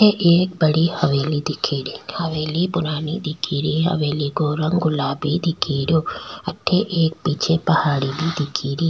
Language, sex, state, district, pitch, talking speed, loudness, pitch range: Rajasthani, female, Rajasthan, Nagaur, 155 Hz, 150 wpm, -20 LUFS, 150-165 Hz